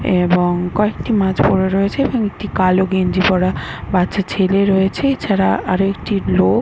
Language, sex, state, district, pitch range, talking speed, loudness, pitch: Bengali, male, West Bengal, North 24 Parganas, 185-195 Hz, 165 wpm, -16 LUFS, 190 Hz